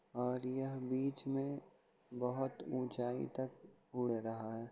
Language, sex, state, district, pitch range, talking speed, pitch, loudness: Hindi, male, Uttar Pradesh, Hamirpur, 125-135 Hz, 125 wpm, 125 Hz, -41 LUFS